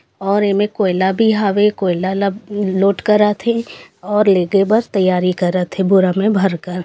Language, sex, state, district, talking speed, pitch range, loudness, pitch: Chhattisgarhi, female, Chhattisgarh, Raigarh, 165 wpm, 185-210 Hz, -15 LUFS, 195 Hz